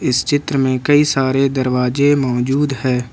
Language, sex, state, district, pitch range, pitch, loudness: Hindi, male, Jharkhand, Ranchi, 125-145 Hz, 135 Hz, -16 LUFS